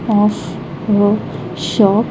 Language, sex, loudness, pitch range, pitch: English, female, -16 LUFS, 160-210 Hz, 205 Hz